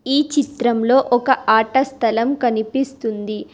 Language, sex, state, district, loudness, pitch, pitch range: Telugu, female, Telangana, Hyderabad, -18 LUFS, 245 Hz, 225-270 Hz